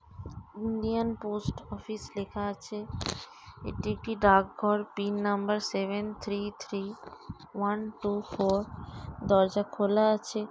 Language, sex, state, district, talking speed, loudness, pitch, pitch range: Bengali, female, West Bengal, Dakshin Dinajpur, 110 wpm, -30 LUFS, 205 Hz, 200-215 Hz